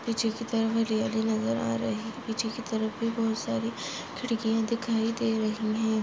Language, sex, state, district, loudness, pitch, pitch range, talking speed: Hindi, female, Goa, North and South Goa, -29 LUFS, 225 Hz, 215-230 Hz, 180 wpm